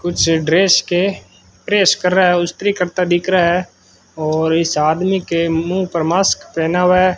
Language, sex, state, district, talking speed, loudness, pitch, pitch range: Hindi, male, Rajasthan, Bikaner, 185 wpm, -15 LUFS, 175 Hz, 160-185 Hz